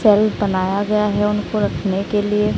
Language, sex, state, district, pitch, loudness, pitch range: Hindi, female, Odisha, Sambalpur, 210 Hz, -18 LUFS, 200-210 Hz